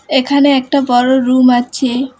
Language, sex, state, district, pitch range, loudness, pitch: Bengali, female, West Bengal, Alipurduar, 250-280 Hz, -12 LUFS, 260 Hz